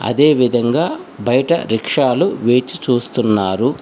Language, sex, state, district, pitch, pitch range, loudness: Telugu, male, Telangana, Hyderabad, 125 Hz, 120-135 Hz, -16 LUFS